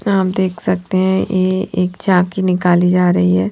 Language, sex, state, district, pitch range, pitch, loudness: Hindi, female, Haryana, Jhajjar, 180-190 Hz, 185 Hz, -15 LUFS